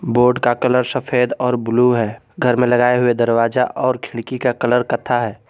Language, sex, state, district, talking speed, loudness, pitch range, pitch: Hindi, male, Jharkhand, Garhwa, 195 wpm, -17 LUFS, 120-125 Hz, 125 Hz